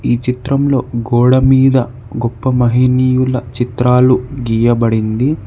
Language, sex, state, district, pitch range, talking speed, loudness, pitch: Telugu, male, Telangana, Hyderabad, 120-130 Hz, 75 wpm, -13 LUFS, 125 Hz